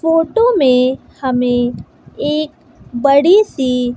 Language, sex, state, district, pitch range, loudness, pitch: Hindi, female, Bihar, West Champaran, 250-325 Hz, -14 LUFS, 275 Hz